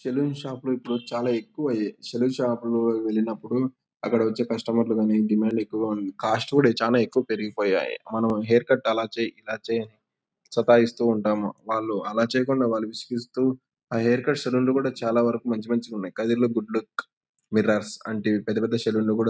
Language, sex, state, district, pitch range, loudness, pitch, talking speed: Telugu, male, Andhra Pradesh, Anantapur, 110-125 Hz, -25 LUFS, 115 Hz, 170 wpm